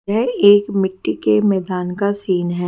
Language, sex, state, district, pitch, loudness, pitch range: Hindi, female, Haryana, Charkhi Dadri, 190 Hz, -17 LUFS, 180-205 Hz